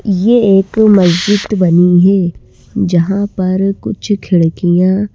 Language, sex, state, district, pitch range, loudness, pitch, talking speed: Hindi, female, Madhya Pradesh, Bhopal, 180-205 Hz, -11 LUFS, 190 Hz, 115 wpm